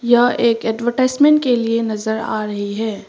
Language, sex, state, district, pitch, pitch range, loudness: Hindi, female, Arunachal Pradesh, Papum Pare, 230 Hz, 220-240 Hz, -17 LUFS